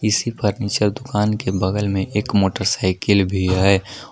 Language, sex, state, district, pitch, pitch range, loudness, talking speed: Hindi, male, Jharkhand, Palamu, 100 Hz, 95-105 Hz, -19 LUFS, 145 wpm